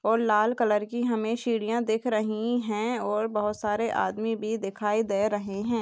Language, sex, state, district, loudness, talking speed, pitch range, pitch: Hindi, female, Goa, North and South Goa, -27 LUFS, 185 wpm, 210-230 Hz, 220 Hz